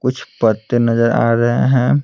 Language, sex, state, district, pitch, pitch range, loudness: Hindi, male, Bihar, Patna, 120 Hz, 115-130 Hz, -15 LUFS